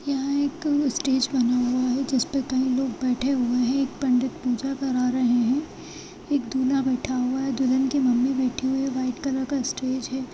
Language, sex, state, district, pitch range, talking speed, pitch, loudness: Hindi, female, Chhattisgarh, Rajnandgaon, 255-275 Hz, 195 wpm, 260 Hz, -24 LUFS